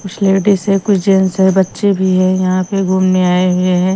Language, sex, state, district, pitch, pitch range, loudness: Hindi, female, Himachal Pradesh, Shimla, 190 Hz, 185-195 Hz, -13 LUFS